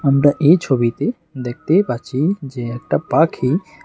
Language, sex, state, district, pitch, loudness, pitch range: Bengali, male, Tripura, West Tripura, 140 Hz, -18 LUFS, 125-160 Hz